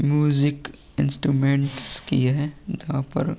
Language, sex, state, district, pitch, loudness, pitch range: Hindi, male, Uttar Pradesh, Muzaffarnagar, 145 Hz, -19 LUFS, 140-150 Hz